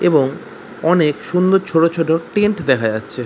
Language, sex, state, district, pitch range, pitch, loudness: Bengali, male, West Bengal, Kolkata, 145-180 Hz, 165 Hz, -16 LUFS